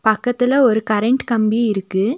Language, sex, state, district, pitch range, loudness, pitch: Tamil, female, Tamil Nadu, Nilgiris, 215-245 Hz, -17 LUFS, 225 Hz